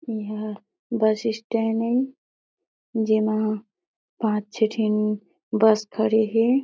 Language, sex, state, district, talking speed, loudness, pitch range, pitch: Surgujia, female, Chhattisgarh, Sarguja, 110 wpm, -24 LUFS, 215-230 Hz, 220 Hz